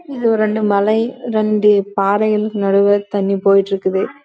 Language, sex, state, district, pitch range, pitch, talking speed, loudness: Tamil, female, Karnataka, Chamarajanagar, 195-215 Hz, 210 Hz, 115 wpm, -15 LUFS